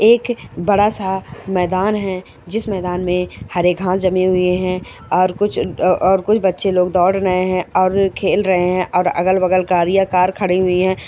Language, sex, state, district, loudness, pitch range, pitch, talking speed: Hindi, male, Rajasthan, Churu, -17 LUFS, 180-195 Hz, 185 Hz, 175 wpm